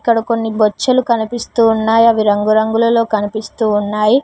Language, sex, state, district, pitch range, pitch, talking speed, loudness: Telugu, female, Telangana, Mahabubabad, 215-230 Hz, 225 Hz, 115 wpm, -14 LUFS